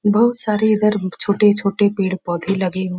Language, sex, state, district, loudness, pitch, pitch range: Hindi, female, Uttar Pradesh, Muzaffarnagar, -18 LUFS, 200 Hz, 185-210 Hz